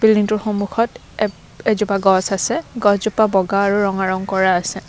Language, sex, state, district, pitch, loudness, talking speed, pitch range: Assamese, female, Assam, Kamrup Metropolitan, 200 Hz, -18 LUFS, 170 wpm, 190-215 Hz